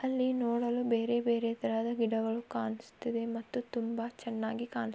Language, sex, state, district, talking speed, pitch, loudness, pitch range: Kannada, female, Karnataka, Belgaum, 145 wpm, 230 Hz, -34 LUFS, 225-240 Hz